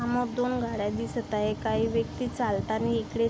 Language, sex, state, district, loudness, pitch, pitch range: Marathi, female, Maharashtra, Aurangabad, -29 LUFS, 230 Hz, 220-240 Hz